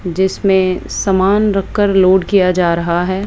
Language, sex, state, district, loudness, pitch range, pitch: Hindi, female, Rajasthan, Jaipur, -14 LUFS, 185-195 Hz, 190 Hz